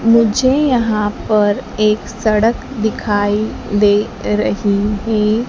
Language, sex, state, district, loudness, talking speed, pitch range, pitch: Hindi, female, Madhya Pradesh, Dhar, -15 LUFS, 100 wpm, 205-230 Hz, 215 Hz